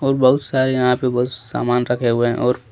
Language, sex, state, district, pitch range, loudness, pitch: Hindi, male, Jharkhand, Deoghar, 120-130 Hz, -18 LUFS, 125 Hz